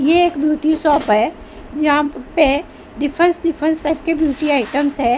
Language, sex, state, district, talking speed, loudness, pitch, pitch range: Hindi, female, Maharashtra, Mumbai Suburban, 160 wpm, -17 LUFS, 300 Hz, 285-315 Hz